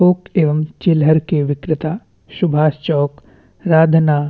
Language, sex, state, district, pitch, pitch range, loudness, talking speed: Hindi, male, Chhattisgarh, Bastar, 155 Hz, 145-165 Hz, -16 LUFS, 125 wpm